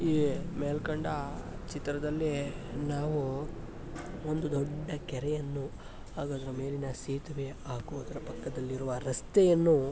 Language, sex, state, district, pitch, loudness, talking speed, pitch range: Kannada, male, Karnataka, Mysore, 145 Hz, -33 LUFS, 95 wpm, 135-150 Hz